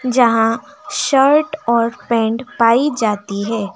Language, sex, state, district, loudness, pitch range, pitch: Hindi, female, West Bengal, Alipurduar, -16 LUFS, 225-270 Hz, 235 Hz